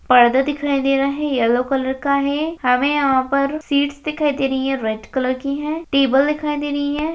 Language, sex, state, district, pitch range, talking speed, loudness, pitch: Hindi, female, Rajasthan, Churu, 265-290 Hz, 210 wpm, -19 LUFS, 275 Hz